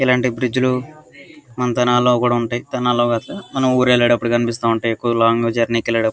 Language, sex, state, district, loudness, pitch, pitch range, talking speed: Telugu, male, Andhra Pradesh, Guntur, -17 LUFS, 120 Hz, 115-125 Hz, 110 wpm